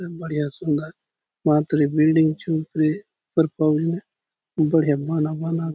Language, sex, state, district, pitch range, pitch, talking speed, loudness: Halbi, male, Chhattisgarh, Bastar, 150-165 Hz, 155 Hz, 105 wpm, -22 LUFS